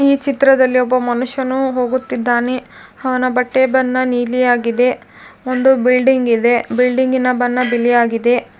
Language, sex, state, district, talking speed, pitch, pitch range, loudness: Kannada, female, Karnataka, Dharwad, 110 wpm, 250 Hz, 245-260 Hz, -15 LUFS